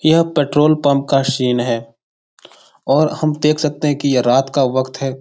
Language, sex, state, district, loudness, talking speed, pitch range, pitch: Hindi, male, Bihar, Jahanabad, -16 LUFS, 195 wpm, 130-150 Hz, 140 Hz